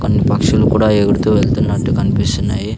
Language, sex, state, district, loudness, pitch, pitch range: Telugu, male, Andhra Pradesh, Sri Satya Sai, -14 LUFS, 105 Hz, 100-110 Hz